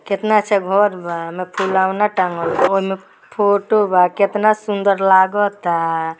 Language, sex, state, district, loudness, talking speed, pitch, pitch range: Bhojpuri, female, Bihar, Gopalganj, -16 LUFS, 135 wpm, 195 Hz, 180-205 Hz